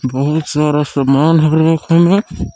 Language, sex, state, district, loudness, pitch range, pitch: Hindi, male, Jharkhand, Palamu, -13 LUFS, 140-160 Hz, 150 Hz